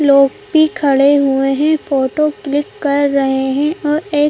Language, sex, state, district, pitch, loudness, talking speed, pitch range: Hindi, female, Madhya Pradesh, Bhopal, 285 Hz, -14 LUFS, 165 wpm, 275-300 Hz